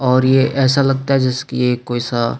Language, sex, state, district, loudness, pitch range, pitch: Hindi, male, Chhattisgarh, Sukma, -16 LUFS, 125-135 Hz, 130 Hz